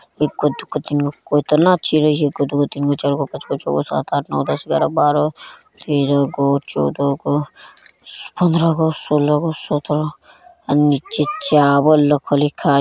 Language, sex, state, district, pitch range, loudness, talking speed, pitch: Bajjika, male, Bihar, Vaishali, 140-155 Hz, -17 LUFS, 165 wpm, 145 Hz